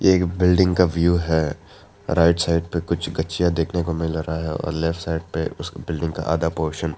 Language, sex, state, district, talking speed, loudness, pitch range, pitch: Hindi, male, Arunachal Pradesh, Lower Dibang Valley, 215 wpm, -22 LUFS, 80-85 Hz, 85 Hz